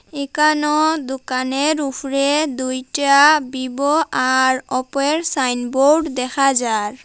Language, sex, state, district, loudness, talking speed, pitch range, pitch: Bengali, female, Assam, Hailakandi, -17 LUFS, 85 wpm, 255-300 Hz, 275 Hz